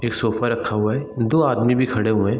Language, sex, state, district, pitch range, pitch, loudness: Hindi, male, Bihar, East Champaran, 110-125 Hz, 120 Hz, -20 LUFS